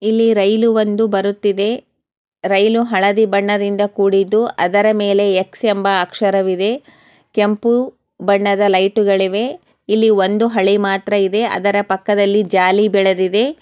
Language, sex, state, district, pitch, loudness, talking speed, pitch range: Kannada, female, Karnataka, Chamarajanagar, 205 Hz, -15 LUFS, 125 wpm, 195-220 Hz